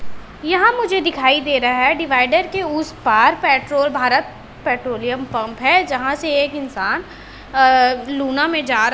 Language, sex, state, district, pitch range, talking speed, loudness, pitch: Hindi, female, Chhattisgarh, Raipur, 255-315 Hz, 155 wpm, -17 LUFS, 275 Hz